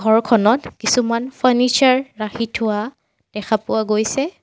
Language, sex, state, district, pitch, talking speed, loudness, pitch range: Assamese, female, Assam, Sonitpur, 230 Hz, 110 wpm, -18 LUFS, 220-255 Hz